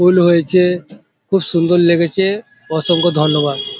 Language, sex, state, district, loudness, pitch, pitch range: Bengali, male, West Bengal, Paschim Medinipur, -14 LUFS, 175 Hz, 165-180 Hz